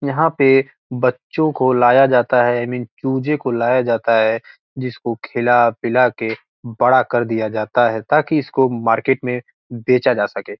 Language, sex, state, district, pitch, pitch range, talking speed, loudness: Hindi, male, Bihar, Gopalganj, 125 Hz, 120-130 Hz, 180 wpm, -17 LUFS